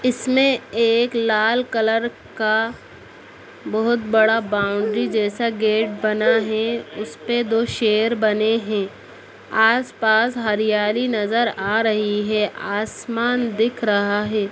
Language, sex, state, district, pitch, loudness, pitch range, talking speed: Hindi, female, Bihar, Saran, 220 Hz, -20 LUFS, 215-230 Hz, 105 wpm